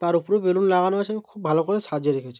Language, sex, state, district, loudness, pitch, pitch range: Bengali, male, West Bengal, Malda, -22 LUFS, 180 Hz, 155-205 Hz